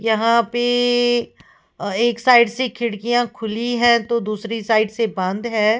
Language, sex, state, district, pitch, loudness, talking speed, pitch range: Hindi, female, Uttar Pradesh, Lalitpur, 235 Hz, -18 LUFS, 145 wpm, 220-240 Hz